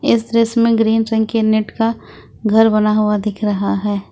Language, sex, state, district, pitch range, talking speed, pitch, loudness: Hindi, female, Jharkhand, Ranchi, 210-225 Hz, 205 wpm, 220 Hz, -16 LUFS